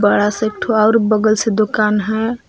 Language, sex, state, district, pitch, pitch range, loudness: Hindi, female, Jharkhand, Palamu, 215 Hz, 215-220 Hz, -15 LUFS